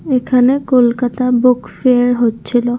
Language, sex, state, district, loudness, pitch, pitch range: Bengali, female, West Bengal, Kolkata, -13 LUFS, 250 Hz, 245-255 Hz